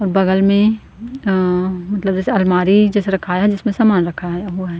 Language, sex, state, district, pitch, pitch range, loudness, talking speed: Hindi, female, Chhattisgarh, Korba, 195 Hz, 185-205 Hz, -16 LUFS, 190 wpm